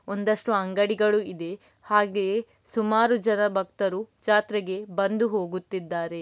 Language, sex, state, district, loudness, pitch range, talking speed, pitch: Kannada, female, Karnataka, Dakshina Kannada, -25 LUFS, 195-215 Hz, 95 wpm, 205 Hz